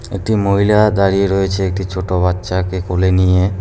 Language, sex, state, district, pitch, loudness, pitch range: Bengali, male, West Bengal, Cooch Behar, 95 Hz, -15 LUFS, 95-100 Hz